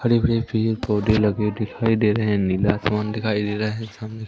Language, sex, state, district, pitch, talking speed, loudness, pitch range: Hindi, male, Madhya Pradesh, Umaria, 110 Hz, 225 wpm, -21 LUFS, 105-110 Hz